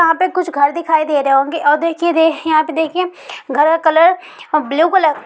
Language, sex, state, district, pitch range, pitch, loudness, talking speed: Hindi, female, Bihar, East Champaran, 305-335 Hz, 320 Hz, -14 LUFS, 230 wpm